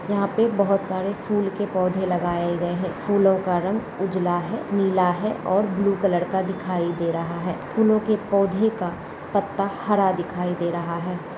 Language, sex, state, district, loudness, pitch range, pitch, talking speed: Hindi, female, Bihar, Gopalganj, -23 LUFS, 175-200 Hz, 190 Hz, 185 wpm